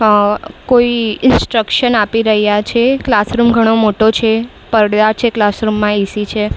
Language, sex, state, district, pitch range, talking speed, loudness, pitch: Gujarati, female, Maharashtra, Mumbai Suburban, 210-235 Hz, 145 wpm, -13 LUFS, 220 Hz